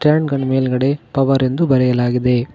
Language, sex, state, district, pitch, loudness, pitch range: Kannada, male, Karnataka, Koppal, 130 Hz, -16 LUFS, 125-140 Hz